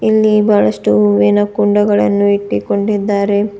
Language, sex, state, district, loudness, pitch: Kannada, female, Karnataka, Bidar, -13 LUFS, 205 Hz